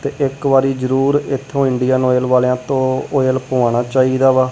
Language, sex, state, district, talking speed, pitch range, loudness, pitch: Punjabi, male, Punjab, Kapurthala, 175 wpm, 130-135 Hz, -16 LUFS, 130 Hz